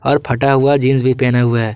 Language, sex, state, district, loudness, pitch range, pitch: Hindi, male, Jharkhand, Garhwa, -13 LUFS, 120-135 Hz, 130 Hz